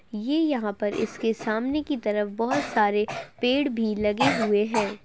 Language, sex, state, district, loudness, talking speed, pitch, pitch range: Hindi, female, Uttar Pradesh, Hamirpur, -25 LUFS, 165 wpm, 220 Hz, 210-250 Hz